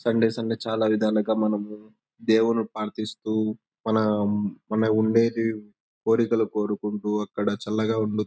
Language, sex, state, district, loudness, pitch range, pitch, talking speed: Telugu, male, Andhra Pradesh, Anantapur, -25 LUFS, 105-110 Hz, 110 Hz, 100 wpm